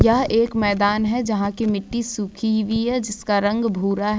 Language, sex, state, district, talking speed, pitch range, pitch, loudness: Hindi, female, Jharkhand, Ranchi, 170 wpm, 205-230 Hz, 215 Hz, -21 LUFS